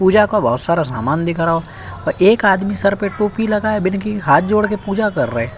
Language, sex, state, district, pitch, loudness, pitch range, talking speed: Hindi, male, Uttar Pradesh, Budaun, 195 Hz, -16 LUFS, 160-210 Hz, 215 wpm